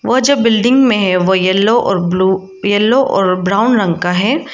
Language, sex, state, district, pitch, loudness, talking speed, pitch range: Hindi, female, Arunachal Pradesh, Lower Dibang Valley, 205 Hz, -12 LUFS, 200 wpm, 185-245 Hz